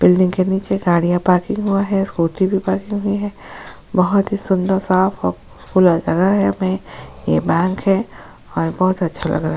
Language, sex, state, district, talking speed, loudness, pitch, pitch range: Hindi, female, Goa, North and South Goa, 175 wpm, -17 LUFS, 185 Hz, 165-195 Hz